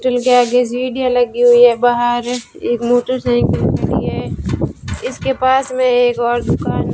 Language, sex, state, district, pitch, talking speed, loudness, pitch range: Hindi, female, Rajasthan, Bikaner, 245 Hz, 175 wpm, -15 LUFS, 240-255 Hz